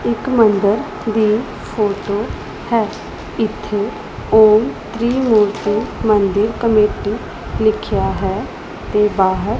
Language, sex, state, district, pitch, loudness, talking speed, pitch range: Punjabi, female, Punjab, Pathankot, 215 Hz, -17 LUFS, 85 wpm, 210-225 Hz